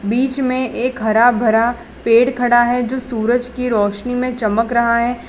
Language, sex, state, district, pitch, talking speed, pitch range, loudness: Hindi, female, Gujarat, Valsad, 240 Hz, 180 wpm, 230-250 Hz, -16 LUFS